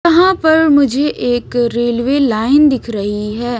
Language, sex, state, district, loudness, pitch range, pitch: Hindi, female, Bihar, Kaimur, -13 LUFS, 235-295 Hz, 250 Hz